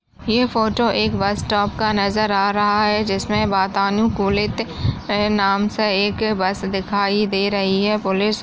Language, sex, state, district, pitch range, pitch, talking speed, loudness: Hindi, female, Maharashtra, Chandrapur, 195-215 Hz, 205 Hz, 155 wpm, -19 LUFS